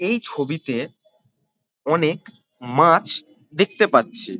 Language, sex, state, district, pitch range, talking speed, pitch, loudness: Bengali, male, West Bengal, Kolkata, 150-225 Hz, 80 wpm, 175 Hz, -20 LUFS